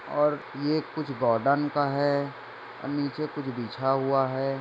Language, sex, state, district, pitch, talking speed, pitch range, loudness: Hindi, male, Maharashtra, Sindhudurg, 140 Hz, 145 wpm, 135-145 Hz, -27 LUFS